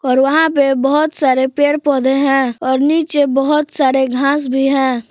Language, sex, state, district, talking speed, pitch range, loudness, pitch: Hindi, female, Jharkhand, Palamu, 175 wpm, 265-290 Hz, -14 LUFS, 275 Hz